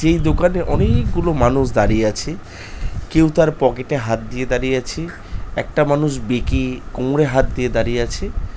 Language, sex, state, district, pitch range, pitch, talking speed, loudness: Bengali, male, West Bengal, North 24 Parganas, 115-150 Hz, 130 Hz, 155 wpm, -18 LUFS